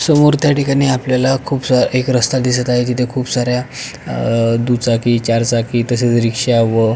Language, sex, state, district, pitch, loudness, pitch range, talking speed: Marathi, male, Maharashtra, Pune, 125 Hz, -15 LUFS, 120-130 Hz, 155 wpm